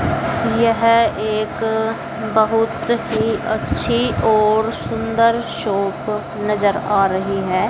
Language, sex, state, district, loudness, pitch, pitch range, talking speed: Hindi, female, Haryana, Jhajjar, -18 LUFS, 220 Hz, 210-225 Hz, 95 wpm